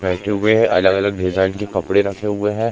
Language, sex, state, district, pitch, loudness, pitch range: Hindi, male, Madhya Pradesh, Umaria, 100 Hz, -17 LUFS, 95-105 Hz